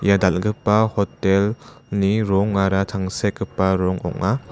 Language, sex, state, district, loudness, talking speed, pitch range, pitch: Garo, male, Meghalaya, West Garo Hills, -20 LUFS, 95 wpm, 95-105 Hz, 100 Hz